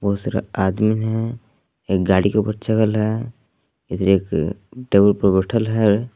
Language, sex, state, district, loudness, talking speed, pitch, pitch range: Hindi, male, Jharkhand, Palamu, -19 LUFS, 155 wpm, 110 Hz, 95-110 Hz